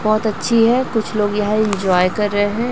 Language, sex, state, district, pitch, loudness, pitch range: Hindi, female, Chhattisgarh, Raipur, 215 Hz, -17 LUFS, 205-225 Hz